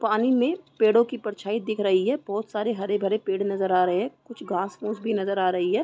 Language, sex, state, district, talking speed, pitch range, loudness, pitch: Hindi, female, Uttar Pradesh, Deoria, 235 wpm, 195-225 Hz, -25 LUFS, 210 Hz